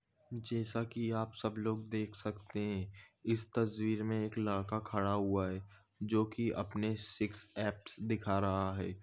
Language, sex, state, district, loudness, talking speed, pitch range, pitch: Hindi, male, Goa, North and South Goa, -38 LUFS, 155 wpm, 100-110 Hz, 110 Hz